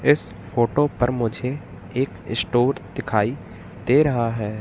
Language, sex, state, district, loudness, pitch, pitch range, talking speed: Hindi, male, Madhya Pradesh, Katni, -22 LUFS, 120 Hz, 105-135 Hz, 130 wpm